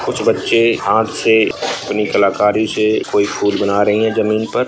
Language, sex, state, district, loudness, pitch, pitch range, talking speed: Hindi, male, Bihar, Bhagalpur, -15 LUFS, 110 Hz, 105-110 Hz, 180 wpm